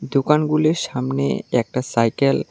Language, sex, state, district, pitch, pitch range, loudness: Bengali, male, Tripura, South Tripura, 130 Hz, 115-150 Hz, -20 LUFS